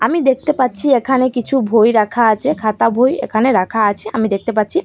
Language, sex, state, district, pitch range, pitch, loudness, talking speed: Bengali, female, Assam, Hailakandi, 220-265 Hz, 235 Hz, -15 LUFS, 200 wpm